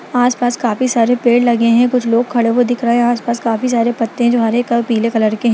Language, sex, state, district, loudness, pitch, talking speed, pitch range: Hindi, female, Bihar, Lakhisarai, -14 LUFS, 235 Hz, 305 wpm, 230-245 Hz